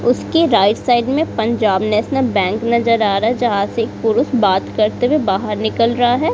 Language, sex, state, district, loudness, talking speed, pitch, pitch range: Hindi, female, Bihar, Kaimur, -16 LUFS, 200 wpm, 230 Hz, 210-245 Hz